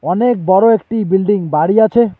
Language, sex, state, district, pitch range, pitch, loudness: Bengali, male, West Bengal, Alipurduar, 190-225 Hz, 210 Hz, -13 LUFS